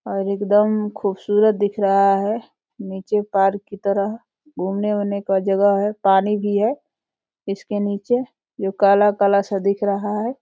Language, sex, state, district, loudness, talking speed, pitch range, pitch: Hindi, female, Uttar Pradesh, Deoria, -19 LUFS, 155 wpm, 195-210 Hz, 205 Hz